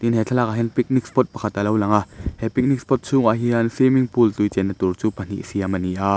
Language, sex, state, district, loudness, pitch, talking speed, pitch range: Mizo, male, Mizoram, Aizawl, -20 LUFS, 115 Hz, 255 wpm, 100-125 Hz